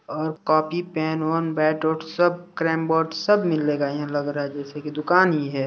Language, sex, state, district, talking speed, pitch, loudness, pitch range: Hindi, male, Chhattisgarh, Sarguja, 210 wpm, 155 Hz, -23 LUFS, 150-165 Hz